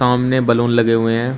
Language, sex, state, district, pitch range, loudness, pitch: Hindi, male, Uttar Pradesh, Shamli, 115-125 Hz, -15 LUFS, 120 Hz